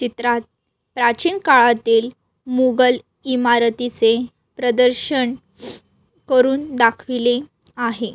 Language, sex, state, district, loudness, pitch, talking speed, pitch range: Marathi, female, Maharashtra, Solapur, -17 LUFS, 245 Hz, 65 wpm, 235-255 Hz